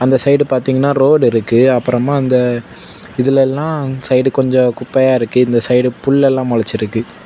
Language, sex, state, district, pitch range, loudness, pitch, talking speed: Tamil, male, Tamil Nadu, Kanyakumari, 125-135 Hz, -13 LUFS, 130 Hz, 130 wpm